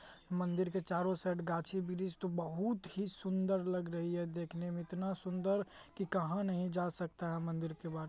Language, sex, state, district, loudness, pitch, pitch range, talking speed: Hindi, male, Bihar, Madhepura, -39 LUFS, 180 Hz, 170-190 Hz, 200 wpm